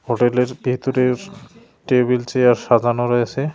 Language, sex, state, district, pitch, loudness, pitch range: Bengali, male, West Bengal, Cooch Behar, 125 Hz, -18 LUFS, 120-125 Hz